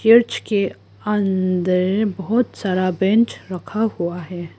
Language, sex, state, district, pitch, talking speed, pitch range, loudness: Hindi, female, Arunachal Pradesh, Lower Dibang Valley, 190 Hz, 120 wpm, 180-215 Hz, -20 LUFS